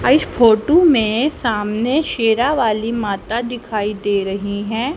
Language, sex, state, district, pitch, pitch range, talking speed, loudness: Hindi, female, Haryana, Charkhi Dadri, 225 Hz, 210-245 Hz, 135 wpm, -17 LUFS